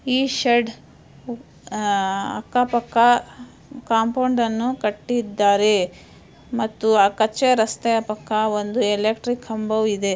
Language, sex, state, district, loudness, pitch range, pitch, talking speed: Kannada, female, Karnataka, Dharwad, -20 LUFS, 210-245 Hz, 225 Hz, 100 wpm